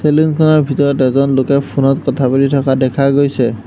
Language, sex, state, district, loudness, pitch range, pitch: Assamese, male, Assam, Hailakandi, -13 LUFS, 135-140 Hz, 140 Hz